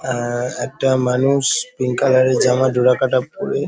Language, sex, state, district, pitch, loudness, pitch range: Bengali, male, West Bengal, Paschim Medinipur, 130 Hz, -17 LUFS, 125-135 Hz